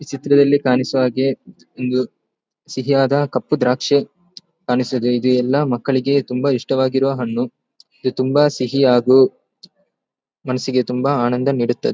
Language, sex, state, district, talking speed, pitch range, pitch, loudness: Kannada, male, Karnataka, Dakshina Kannada, 115 wpm, 125-140 Hz, 130 Hz, -17 LUFS